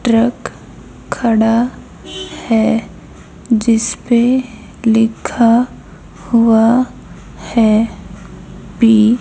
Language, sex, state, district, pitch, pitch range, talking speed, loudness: Hindi, female, Haryana, Charkhi Dadri, 225 Hz, 220-235 Hz, 60 wpm, -14 LUFS